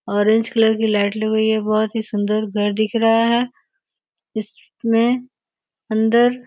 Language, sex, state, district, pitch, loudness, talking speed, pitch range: Hindi, female, Uttar Pradesh, Gorakhpur, 220 Hz, -18 LUFS, 155 wpm, 215-235 Hz